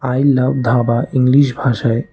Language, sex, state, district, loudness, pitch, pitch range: Bengali, male, Tripura, West Tripura, -14 LUFS, 130 Hz, 120-135 Hz